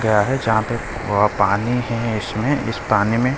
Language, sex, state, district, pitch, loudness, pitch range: Hindi, male, Delhi, New Delhi, 115 Hz, -19 LUFS, 105-120 Hz